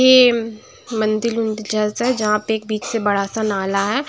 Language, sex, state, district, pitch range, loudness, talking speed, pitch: Hindi, female, Bihar, Patna, 210-230 Hz, -19 LUFS, 190 wpm, 220 Hz